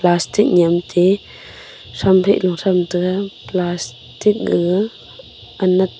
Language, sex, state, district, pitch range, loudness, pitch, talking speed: Wancho, female, Arunachal Pradesh, Longding, 175-195 Hz, -17 LUFS, 180 Hz, 100 wpm